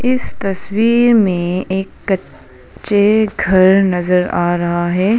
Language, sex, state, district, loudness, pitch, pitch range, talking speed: Hindi, female, Arunachal Pradesh, Papum Pare, -14 LUFS, 195 Hz, 180-215 Hz, 125 wpm